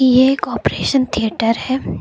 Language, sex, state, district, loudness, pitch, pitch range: Hindi, female, Uttar Pradesh, Lucknow, -17 LUFS, 255 Hz, 230-265 Hz